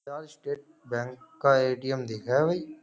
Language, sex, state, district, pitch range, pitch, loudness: Hindi, male, Uttar Pradesh, Jyotiba Phule Nagar, 130-155 Hz, 140 Hz, -28 LUFS